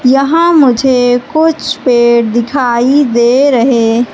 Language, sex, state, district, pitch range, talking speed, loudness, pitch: Hindi, female, Madhya Pradesh, Katni, 235-275 Hz, 100 wpm, -9 LUFS, 250 Hz